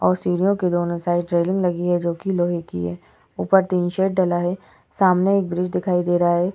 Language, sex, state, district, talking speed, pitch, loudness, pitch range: Hindi, female, Uttar Pradesh, Etah, 220 wpm, 175 Hz, -21 LUFS, 175-185 Hz